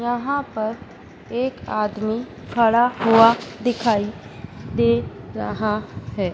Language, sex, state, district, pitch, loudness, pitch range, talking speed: Hindi, female, Madhya Pradesh, Dhar, 220 Hz, -21 LUFS, 185-235 Hz, 95 wpm